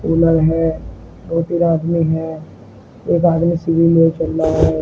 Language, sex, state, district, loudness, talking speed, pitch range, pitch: Hindi, male, Uttar Pradesh, Shamli, -16 LUFS, 160 wpm, 160-165 Hz, 165 Hz